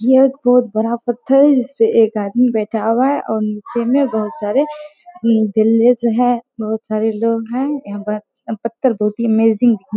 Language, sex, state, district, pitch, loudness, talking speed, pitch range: Hindi, female, Bihar, Bhagalpur, 230 Hz, -16 LUFS, 185 wpm, 220-250 Hz